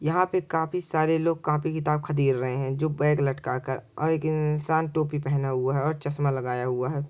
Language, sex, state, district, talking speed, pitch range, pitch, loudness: Maithili, male, Bihar, Supaul, 220 wpm, 135-160 Hz, 150 Hz, -26 LUFS